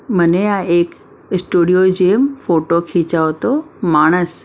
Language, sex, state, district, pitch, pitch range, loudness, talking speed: Gujarati, female, Maharashtra, Mumbai Suburban, 180 Hz, 170-195 Hz, -15 LUFS, 120 wpm